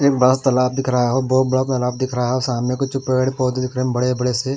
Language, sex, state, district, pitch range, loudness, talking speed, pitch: Hindi, male, Delhi, New Delhi, 125-130 Hz, -19 LUFS, 315 wpm, 130 Hz